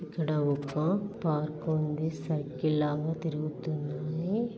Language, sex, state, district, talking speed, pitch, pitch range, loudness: Telugu, female, Telangana, Karimnagar, 90 wpm, 155 Hz, 150-165 Hz, -31 LUFS